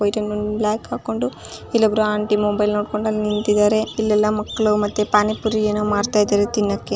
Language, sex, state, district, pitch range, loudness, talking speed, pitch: Kannada, female, Karnataka, Chamarajanagar, 210-215 Hz, -19 LUFS, 175 wpm, 210 Hz